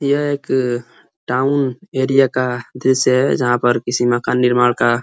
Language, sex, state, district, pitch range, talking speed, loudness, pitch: Hindi, male, Uttar Pradesh, Ghazipur, 120-135 Hz, 165 wpm, -17 LUFS, 125 Hz